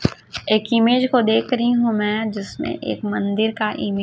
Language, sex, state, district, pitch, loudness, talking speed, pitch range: Hindi, female, Chhattisgarh, Raipur, 220 Hz, -20 LUFS, 180 wpm, 210-240 Hz